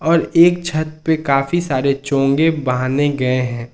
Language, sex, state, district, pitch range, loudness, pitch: Hindi, male, Jharkhand, Ranchi, 130-160 Hz, -16 LUFS, 140 Hz